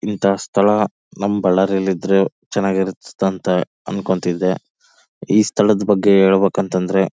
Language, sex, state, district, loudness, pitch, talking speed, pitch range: Kannada, male, Karnataka, Bellary, -17 LUFS, 95 Hz, 115 wpm, 95-100 Hz